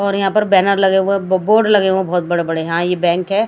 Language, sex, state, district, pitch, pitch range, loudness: Hindi, female, Himachal Pradesh, Shimla, 190 Hz, 180-200 Hz, -15 LUFS